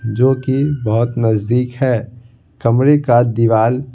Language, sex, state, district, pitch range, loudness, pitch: Hindi, male, Bihar, Patna, 115-130 Hz, -15 LUFS, 120 Hz